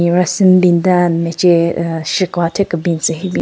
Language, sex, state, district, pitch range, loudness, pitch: Rengma, female, Nagaland, Kohima, 170-185 Hz, -14 LUFS, 175 Hz